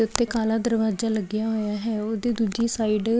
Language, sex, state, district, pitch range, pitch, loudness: Punjabi, female, Chandigarh, Chandigarh, 215-230 Hz, 225 Hz, -24 LUFS